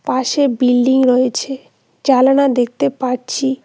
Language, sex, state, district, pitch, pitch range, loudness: Bengali, female, West Bengal, Cooch Behar, 260 Hz, 250-270 Hz, -15 LUFS